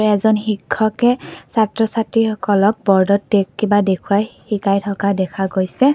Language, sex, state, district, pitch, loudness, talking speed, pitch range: Assamese, female, Assam, Kamrup Metropolitan, 205 Hz, -17 LUFS, 120 wpm, 200-220 Hz